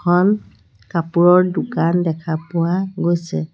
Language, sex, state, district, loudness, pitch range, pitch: Assamese, female, Assam, Sonitpur, -18 LUFS, 160-175 Hz, 170 Hz